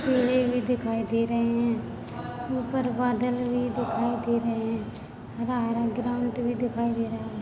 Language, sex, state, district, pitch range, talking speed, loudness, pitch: Hindi, male, Chhattisgarh, Raigarh, 230-245 Hz, 170 wpm, -27 LUFS, 240 Hz